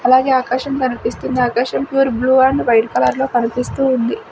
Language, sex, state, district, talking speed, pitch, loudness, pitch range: Telugu, female, Andhra Pradesh, Sri Satya Sai, 165 wpm, 255 Hz, -16 LUFS, 245-265 Hz